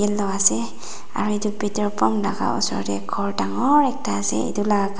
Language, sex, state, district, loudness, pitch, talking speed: Nagamese, female, Nagaland, Dimapur, -22 LUFS, 200 Hz, 170 wpm